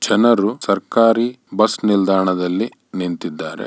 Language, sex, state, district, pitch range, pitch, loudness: Kannada, male, Karnataka, Bellary, 95-115 Hz, 100 Hz, -17 LUFS